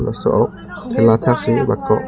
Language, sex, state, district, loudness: Karbi, male, Assam, Karbi Anglong, -16 LUFS